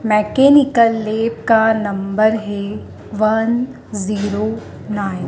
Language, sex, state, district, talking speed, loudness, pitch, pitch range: Hindi, female, Madhya Pradesh, Dhar, 100 wpm, -16 LUFS, 215 Hz, 205-225 Hz